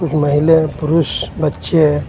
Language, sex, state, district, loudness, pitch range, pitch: Hindi, male, Jharkhand, Ranchi, -15 LUFS, 145-160 Hz, 155 Hz